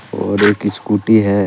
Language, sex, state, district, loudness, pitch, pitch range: Hindi, male, Jharkhand, Deoghar, -15 LUFS, 105 Hz, 100-105 Hz